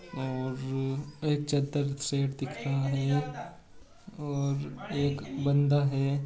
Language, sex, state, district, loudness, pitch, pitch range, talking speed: Hindi, male, Bihar, Bhagalpur, -31 LUFS, 140 Hz, 135-145 Hz, 105 wpm